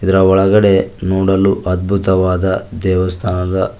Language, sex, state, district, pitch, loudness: Kannada, male, Karnataka, Koppal, 95 Hz, -14 LUFS